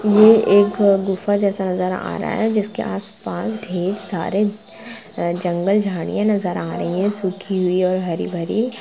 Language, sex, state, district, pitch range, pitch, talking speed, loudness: Hindi, female, Jharkhand, Jamtara, 185-210 Hz, 200 Hz, 150 wpm, -18 LUFS